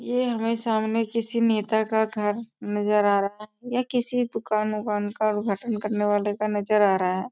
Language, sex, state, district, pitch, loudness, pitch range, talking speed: Hindi, female, Bihar, East Champaran, 215 Hz, -25 LUFS, 210-230 Hz, 190 wpm